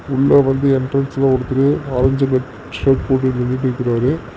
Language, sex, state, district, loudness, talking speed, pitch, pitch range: Tamil, male, Tamil Nadu, Namakkal, -16 LUFS, 125 wpm, 130 Hz, 130-135 Hz